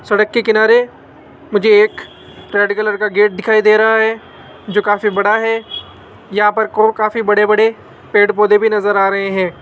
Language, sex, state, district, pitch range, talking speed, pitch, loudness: Hindi, male, Rajasthan, Jaipur, 205-220 Hz, 180 wpm, 210 Hz, -13 LUFS